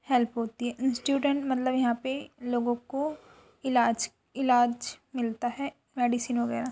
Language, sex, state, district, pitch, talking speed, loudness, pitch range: Hindi, female, Uttar Pradesh, Etah, 245 Hz, 145 wpm, -29 LUFS, 240-265 Hz